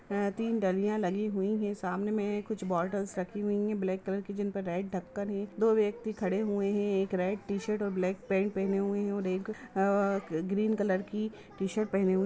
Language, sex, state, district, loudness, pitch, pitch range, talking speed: Bhojpuri, female, Bihar, Saran, -32 LUFS, 200 Hz, 190-210 Hz, 225 wpm